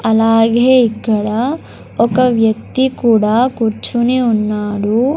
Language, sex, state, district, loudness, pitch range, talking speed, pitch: Telugu, male, Andhra Pradesh, Sri Satya Sai, -13 LUFS, 220-250 Hz, 80 wpm, 230 Hz